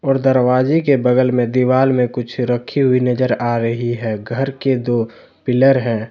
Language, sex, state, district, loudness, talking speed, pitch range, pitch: Hindi, male, Jharkhand, Deoghar, -16 LUFS, 185 wpm, 120-130 Hz, 125 Hz